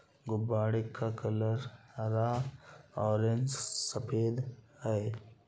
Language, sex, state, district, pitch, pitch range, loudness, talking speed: Hindi, male, Bihar, Gopalganj, 115 Hz, 110-120 Hz, -34 LUFS, 75 wpm